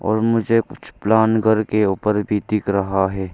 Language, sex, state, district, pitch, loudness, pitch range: Hindi, male, Arunachal Pradesh, Longding, 105 Hz, -18 LUFS, 100-110 Hz